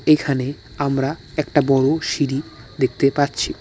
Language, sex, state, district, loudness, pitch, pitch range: Bengali, male, West Bengal, Alipurduar, -20 LUFS, 140 Hz, 130-145 Hz